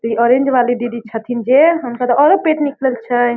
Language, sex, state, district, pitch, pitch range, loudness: Maithili, female, Bihar, Darbhanga, 245 Hz, 240-270 Hz, -14 LUFS